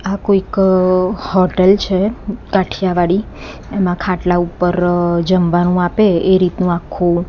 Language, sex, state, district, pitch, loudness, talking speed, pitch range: Gujarati, female, Gujarat, Gandhinagar, 185 Hz, -15 LUFS, 105 wpm, 175-195 Hz